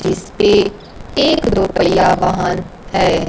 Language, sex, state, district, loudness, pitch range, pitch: Hindi, female, Bihar, Kaimur, -15 LUFS, 180-195 Hz, 185 Hz